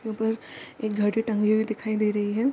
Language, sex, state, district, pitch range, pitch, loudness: Hindi, female, Bihar, Darbhanga, 210-220 Hz, 220 Hz, -26 LUFS